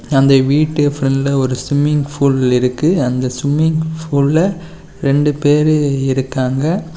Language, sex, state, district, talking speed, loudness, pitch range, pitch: Tamil, male, Tamil Nadu, Kanyakumari, 110 wpm, -15 LUFS, 135-155 Hz, 145 Hz